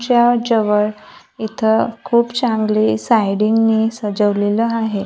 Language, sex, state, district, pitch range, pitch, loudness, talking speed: Marathi, female, Maharashtra, Gondia, 210-230 Hz, 220 Hz, -16 LUFS, 95 wpm